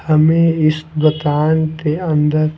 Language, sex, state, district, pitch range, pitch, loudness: Hindi, male, Delhi, New Delhi, 155-160 Hz, 155 Hz, -15 LUFS